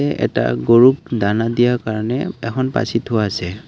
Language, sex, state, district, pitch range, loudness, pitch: Assamese, male, Assam, Kamrup Metropolitan, 105-130 Hz, -17 LUFS, 115 Hz